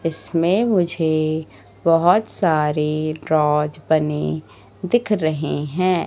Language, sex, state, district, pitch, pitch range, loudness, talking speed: Hindi, female, Madhya Pradesh, Katni, 160 Hz, 150-175 Hz, -19 LUFS, 90 wpm